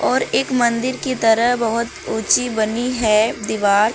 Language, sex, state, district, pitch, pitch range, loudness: Hindi, female, Uttar Pradesh, Lucknow, 230 Hz, 220-245 Hz, -18 LUFS